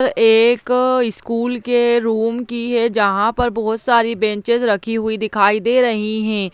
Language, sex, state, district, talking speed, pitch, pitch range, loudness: Hindi, female, Bihar, Jahanabad, 165 wpm, 230 Hz, 220-240 Hz, -17 LUFS